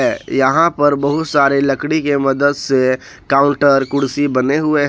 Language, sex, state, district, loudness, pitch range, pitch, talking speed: Hindi, male, Jharkhand, Ranchi, -15 LUFS, 135-145 Hz, 140 Hz, 160 wpm